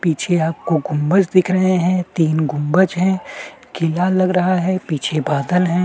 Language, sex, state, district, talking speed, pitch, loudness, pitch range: Hindi, male, Chhattisgarh, Kabirdham, 165 wpm, 175 Hz, -17 LUFS, 160-185 Hz